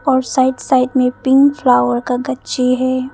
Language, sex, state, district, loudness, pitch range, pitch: Hindi, female, Arunachal Pradesh, Papum Pare, -15 LUFS, 250-265 Hz, 255 Hz